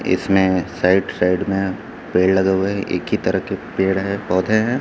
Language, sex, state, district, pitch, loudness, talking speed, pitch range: Hindi, male, Chhattisgarh, Raipur, 95 Hz, -19 LUFS, 200 wpm, 90-100 Hz